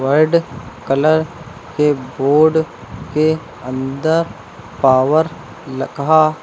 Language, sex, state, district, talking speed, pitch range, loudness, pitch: Hindi, male, Uttar Pradesh, Lucknow, 75 wpm, 135-160 Hz, -16 LUFS, 155 Hz